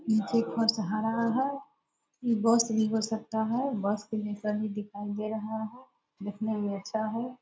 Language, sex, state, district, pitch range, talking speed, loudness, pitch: Hindi, female, Bihar, Purnia, 210-230 Hz, 195 wpm, -30 LUFS, 220 Hz